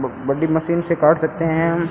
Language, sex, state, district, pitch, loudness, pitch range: Hindi, male, Rajasthan, Bikaner, 160 Hz, -18 LUFS, 155-170 Hz